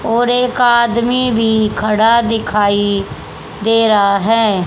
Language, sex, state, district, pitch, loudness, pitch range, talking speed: Hindi, female, Haryana, Charkhi Dadri, 225 Hz, -13 LUFS, 210-235 Hz, 115 wpm